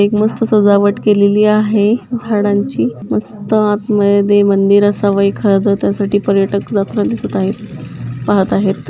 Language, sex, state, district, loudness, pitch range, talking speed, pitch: Marathi, female, Maharashtra, Dhule, -13 LUFS, 200-210 Hz, 140 wpm, 205 Hz